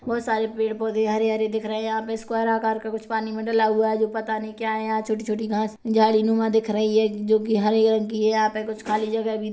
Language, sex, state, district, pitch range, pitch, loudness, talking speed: Hindi, female, Chhattisgarh, Kabirdham, 215-220 Hz, 220 Hz, -23 LUFS, 285 wpm